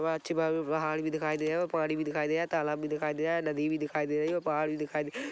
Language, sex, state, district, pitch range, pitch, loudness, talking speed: Hindi, male, Chhattisgarh, Korba, 150-160 Hz, 155 Hz, -31 LUFS, 315 wpm